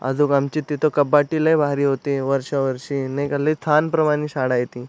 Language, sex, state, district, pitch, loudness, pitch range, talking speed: Marathi, male, Maharashtra, Aurangabad, 145 Hz, -20 LUFS, 135-150 Hz, 195 wpm